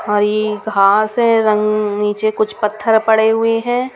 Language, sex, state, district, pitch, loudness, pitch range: Hindi, female, Punjab, Kapurthala, 215 Hz, -15 LUFS, 210-225 Hz